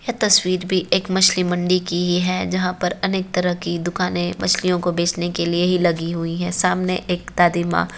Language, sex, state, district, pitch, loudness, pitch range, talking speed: Hindi, female, Uttar Pradesh, Varanasi, 180 Hz, -19 LUFS, 175-185 Hz, 220 wpm